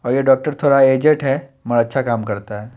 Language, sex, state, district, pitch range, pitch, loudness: Hindi, male, Chandigarh, Chandigarh, 115-135 Hz, 135 Hz, -17 LUFS